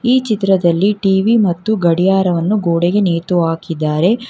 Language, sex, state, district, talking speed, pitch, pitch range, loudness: Kannada, female, Karnataka, Bangalore, 110 wpm, 190 Hz, 170-210 Hz, -14 LUFS